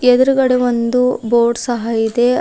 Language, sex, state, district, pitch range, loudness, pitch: Kannada, female, Karnataka, Bidar, 235-250 Hz, -15 LUFS, 245 Hz